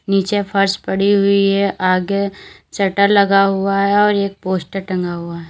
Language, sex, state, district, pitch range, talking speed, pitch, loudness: Hindi, female, Uttar Pradesh, Lalitpur, 190-200 Hz, 175 wpm, 195 Hz, -16 LUFS